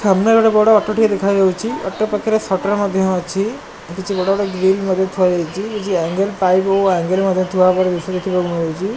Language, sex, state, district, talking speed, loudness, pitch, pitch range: Odia, male, Odisha, Malkangiri, 205 wpm, -16 LUFS, 190 Hz, 185-205 Hz